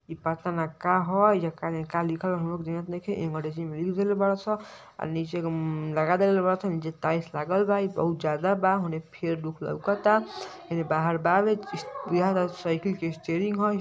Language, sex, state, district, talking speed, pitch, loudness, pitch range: Bhojpuri, male, Uttar Pradesh, Ghazipur, 200 wpm, 170 Hz, -27 LUFS, 165-195 Hz